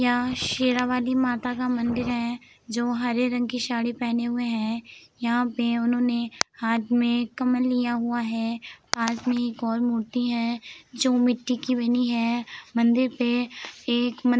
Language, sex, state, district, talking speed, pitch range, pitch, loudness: Hindi, female, Uttar Pradesh, Jalaun, 160 wpm, 235-245 Hz, 240 Hz, -25 LUFS